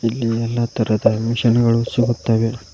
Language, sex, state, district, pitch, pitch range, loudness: Kannada, male, Karnataka, Koppal, 115 Hz, 115-120 Hz, -18 LUFS